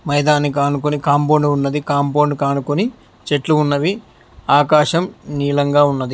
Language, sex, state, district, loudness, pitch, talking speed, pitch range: Telugu, male, Telangana, Hyderabad, -16 LUFS, 145 Hz, 100 wpm, 145-150 Hz